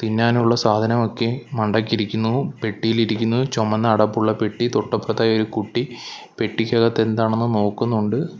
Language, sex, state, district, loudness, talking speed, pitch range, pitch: Malayalam, male, Kerala, Kollam, -20 LUFS, 100 wpm, 110-115 Hz, 115 Hz